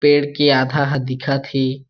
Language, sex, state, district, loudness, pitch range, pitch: Chhattisgarhi, male, Chhattisgarh, Jashpur, -18 LUFS, 130-145 Hz, 140 Hz